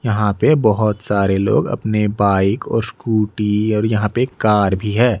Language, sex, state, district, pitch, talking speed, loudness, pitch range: Hindi, male, Odisha, Nuapada, 105 Hz, 175 wpm, -17 LUFS, 105-110 Hz